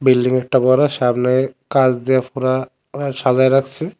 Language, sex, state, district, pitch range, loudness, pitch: Bengali, male, Tripura, West Tripura, 130-135 Hz, -16 LUFS, 130 Hz